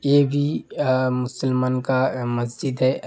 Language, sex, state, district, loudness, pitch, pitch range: Hindi, male, Uttar Pradesh, Hamirpur, -22 LUFS, 130 Hz, 125-135 Hz